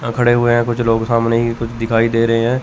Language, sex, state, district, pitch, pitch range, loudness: Hindi, male, Chandigarh, Chandigarh, 115 Hz, 115-120 Hz, -15 LUFS